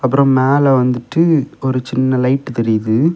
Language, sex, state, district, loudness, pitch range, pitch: Tamil, male, Tamil Nadu, Kanyakumari, -15 LUFS, 125-140 Hz, 130 Hz